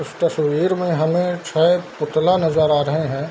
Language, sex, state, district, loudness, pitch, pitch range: Hindi, male, Bihar, Darbhanga, -19 LUFS, 160 Hz, 155-175 Hz